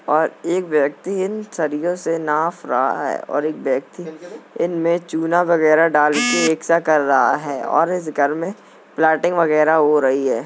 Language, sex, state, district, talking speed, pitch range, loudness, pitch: Hindi, male, Uttar Pradesh, Jalaun, 180 wpm, 155-175 Hz, -18 LUFS, 160 Hz